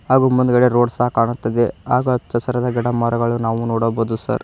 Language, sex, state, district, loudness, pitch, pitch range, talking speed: Kannada, male, Karnataka, Koppal, -18 LUFS, 120 Hz, 115-125 Hz, 160 wpm